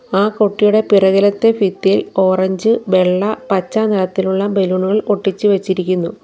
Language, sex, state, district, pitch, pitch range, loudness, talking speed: Malayalam, female, Kerala, Kollam, 195 Hz, 190-210 Hz, -15 LUFS, 105 wpm